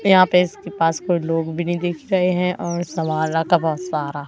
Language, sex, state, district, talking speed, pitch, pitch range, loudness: Hindi, female, Madhya Pradesh, Katni, 225 wpm, 175 Hz, 160-180 Hz, -20 LUFS